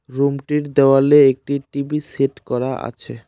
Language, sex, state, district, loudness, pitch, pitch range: Bengali, male, West Bengal, Cooch Behar, -17 LUFS, 140 Hz, 135-145 Hz